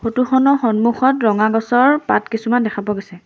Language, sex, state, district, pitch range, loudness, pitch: Assamese, female, Assam, Sonitpur, 215-255 Hz, -16 LUFS, 230 Hz